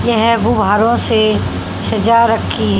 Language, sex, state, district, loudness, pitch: Hindi, female, Haryana, Rohtak, -13 LUFS, 215 Hz